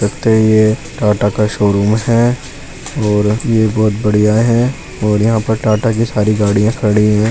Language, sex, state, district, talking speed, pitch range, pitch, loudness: Hindi, male, Uttar Pradesh, Muzaffarnagar, 180 wpm, 105-115 Hz, 110 Hz, -13 LUFS